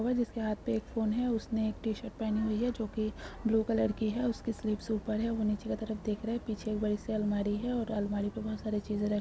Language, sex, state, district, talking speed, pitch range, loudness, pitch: Marwari, female, Rajasthan, Nagaur, 275 wpm, 210-225 Hz, -33 LUFS, 215 Hz